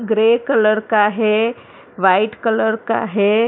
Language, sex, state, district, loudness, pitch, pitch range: Hindi, female, Maharashtra, Mumbai Suburban, -16 LUFS, 220 Hz, 215-230 Hz